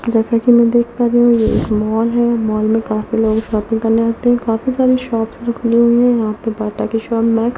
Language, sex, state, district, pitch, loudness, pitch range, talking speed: Hindi, female, Delhi, New Delhi, 230 Hz, -15 LUFS, 225-235 Hz, 255 wpm